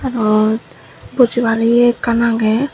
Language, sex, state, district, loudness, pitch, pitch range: Chakma, female, Tripura, Dhalai, -14 LUFS, 235 Hz, 220-240 Hz